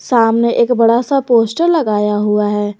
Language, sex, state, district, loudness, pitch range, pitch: Hindi, female, Jharkhand, Garhwa, -13 LUFS, 210-245 Hz, 230 Hz